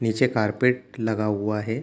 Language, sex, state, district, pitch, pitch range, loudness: Hindi, male, Bihar, Darbhanga, 110 Hz, 105-125 Hz, -24 LUFS